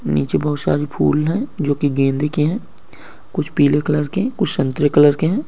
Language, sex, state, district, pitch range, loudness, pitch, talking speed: Hindi, male, Uttar Pradesh, Budaun, 145-160 Hz, -18 LUFS, 150 Hz, 210 wpm